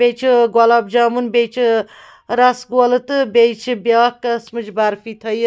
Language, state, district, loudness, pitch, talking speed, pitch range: Kashmiri, Punjab, Kapurthala, -15 LUFS, 235 Hz, 165 wpm, 230-245 Hz